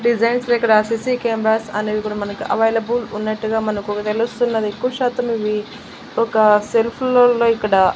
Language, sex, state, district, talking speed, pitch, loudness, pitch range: Telugu, female, Andhra Pradesh, Annamaya, 145 wpm, 225 Hz, -18 LUFS, 210-235 Hz